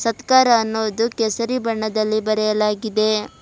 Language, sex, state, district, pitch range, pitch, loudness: Kannada, female, Karnataka, Bidar, 215-230 Hz, 220 Hz, -19 LUFS